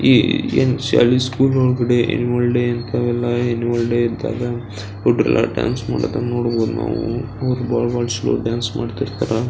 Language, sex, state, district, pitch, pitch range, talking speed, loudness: Kannada, male, Karnataka, Belgaum, 120 Hz, 115-120 Hz, 125 wpm, -19 LUFS